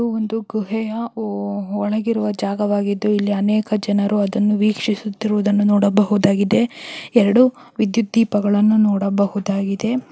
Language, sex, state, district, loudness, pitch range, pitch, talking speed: Kannada, female, Karnataka, Belgaum, -18 LUFS, 205-220 Hz, 210 Hz, 95 wpm